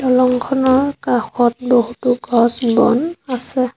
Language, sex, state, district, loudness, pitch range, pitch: Assamese, female, Assam, Sonitpur, -16 LUFS, 240-260 Hz, 250 Hz